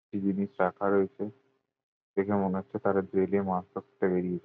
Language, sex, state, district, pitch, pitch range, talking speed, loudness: Bengali, male, West Bengal, Jhargram, 100 Hz, 95-100 Hz, 160 wpm, -30 LUFS